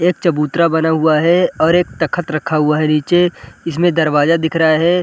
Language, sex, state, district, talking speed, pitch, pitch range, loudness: Hindi, male, Bihar, Gaya, 205 wpm, 160 Hz, 155-175 Hz, -14 LUFS